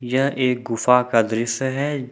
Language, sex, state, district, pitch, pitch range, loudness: Hindi, male, Jharkhand, Ranchi, 125 Hz, 120-135 Hz, -20 LUFS